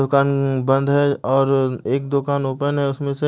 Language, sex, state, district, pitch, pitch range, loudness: Hindi, male, Odisha, Malkangiri, 140 Hz, 135-140 Hz, -19 LUFS